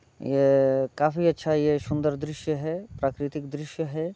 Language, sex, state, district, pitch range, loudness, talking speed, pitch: Hindi, male, Bihar, Muzaffarpur, 135-155 Hz, -26 LUFS, 145 wpm, 150 Hz